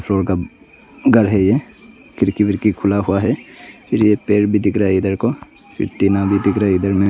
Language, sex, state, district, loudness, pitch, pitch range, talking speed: Hindi, male, Arunachal Pradesh, Longding, -16 LUFS, 100 Hz, 95-105 Hz, 195 wpm